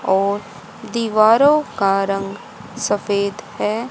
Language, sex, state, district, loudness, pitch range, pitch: Hindi, female, Haryana, Rohtak, -18 LUFS, 195-230 Hz, 210 Hz